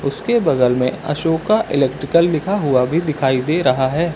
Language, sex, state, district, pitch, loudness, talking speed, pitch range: Hindi, male, Uttar Pradesh, Lucknow, 150 Hz, -17 LUFS, 175 wpm, 130-170 Hz